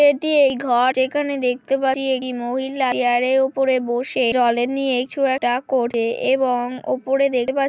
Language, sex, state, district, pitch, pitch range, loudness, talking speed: Bengali, female, West Bengal, Dakshin Dinajpur, 260 Hz, 245-270 Hz, -19 LUFS, 165 wpm